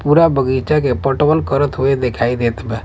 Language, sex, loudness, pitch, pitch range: Bhojpuri, male, -15 LUFS, 135 Hz, 120-145 Hz